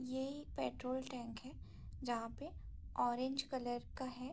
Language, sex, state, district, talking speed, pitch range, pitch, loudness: Hindi, female, Bihar, Saharsa, 150 wpm, 245-260 Hz, 255 Hz, -43 LUFS